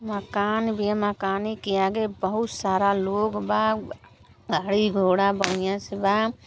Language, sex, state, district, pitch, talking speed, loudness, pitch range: Bhojpuri, female, Uttar Pradesh, Gorakhpur, 205 Hz, 130 wpm, -24 LUFS, 195-215 Hz